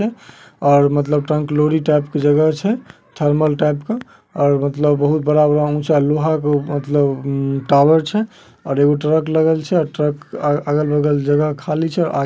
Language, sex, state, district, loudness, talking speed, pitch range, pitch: Magahi, male, Bihar, Samastipur, -17 LUFS, 205 wpm, 145-155 Hz, 150 Hz